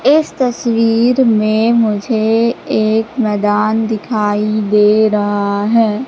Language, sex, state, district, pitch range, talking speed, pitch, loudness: Hindi, female, Madhya Pradesh, Katni, 210-230 Hz, 100 wpm, 220 Hz, -13 LUFS